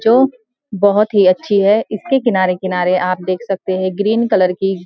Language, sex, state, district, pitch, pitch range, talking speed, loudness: Hindi, female, Uttarakhand, Uttarkashi, 200 Hz, 185-220 Hz, 185 wpm, -15 LUFS